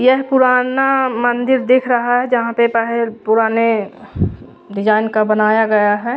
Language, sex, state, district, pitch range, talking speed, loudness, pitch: Hindi, female, Odisha, Khordha, 220-250 Hz, 145 wpm, -15 LUFS, 235 Hz